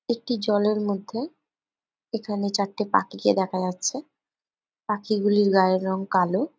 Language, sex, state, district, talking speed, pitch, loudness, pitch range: Bengali, female, West Bengal, Jalpaiguri, 110 wpm, 205 Hz, -24 LUFS, 190-225 Hz